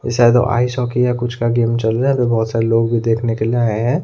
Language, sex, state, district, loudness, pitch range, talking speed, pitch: Hindi, male, Odisha, Khordha, -16 LUFS, 115-125 Hz, 325 wpm, 120 Hz